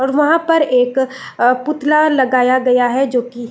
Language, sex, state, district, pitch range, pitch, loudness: Hindi, female, Chhattisgarh, Raigarh, 250-295 Hz, 265 Hz, -14 LUFS